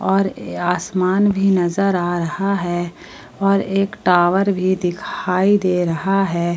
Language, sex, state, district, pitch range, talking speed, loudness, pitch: Hindi, female, Jharkhand, Palamu, 175-195 Hz, 135 wpm, -18 LUFS, 185 Hz